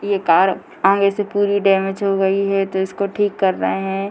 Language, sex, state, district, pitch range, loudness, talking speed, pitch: Hindi, female, Bihar, Purnia, 190-200 Hz, -18 LUFS, 220 wpm, 195 Hz